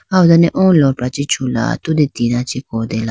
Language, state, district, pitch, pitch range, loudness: Idu Mishmi, Arunachal Pradesh, Lower Dibang Valley, 135 Hz, 120-160 Hz, -15 LUFS